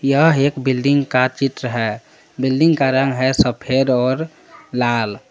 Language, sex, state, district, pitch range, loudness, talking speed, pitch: Hindi, male, Jharkhand, Palamu, 125-140 Hz, -17 LUFS, 145 wpm, 130 Hz